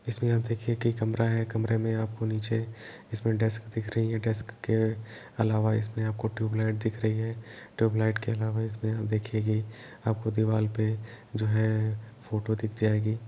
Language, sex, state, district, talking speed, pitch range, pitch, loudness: Hindi, male, Uttar Pradesh, Etah, 175 wpm, 110-115 Hz, 110 Hz, -29 LUFS